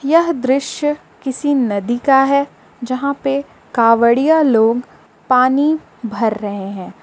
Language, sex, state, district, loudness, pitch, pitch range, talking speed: Hindi, female, Jharkhand, Palamu, -16 LUFS, 260 Hz, 230-280 Hz, 120 wpm